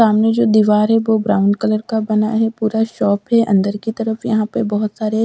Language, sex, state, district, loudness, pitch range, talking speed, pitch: Hindi, female, Bihar, Katihar, -16 LUFS, 210-225 Hz, 230 wpm, 220 Hz